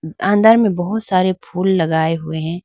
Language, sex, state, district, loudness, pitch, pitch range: Hindi, female, Arunachal Pradesh, Lower Dibang Valley, -16 LUFS, 180 Hz, 160-200 Hz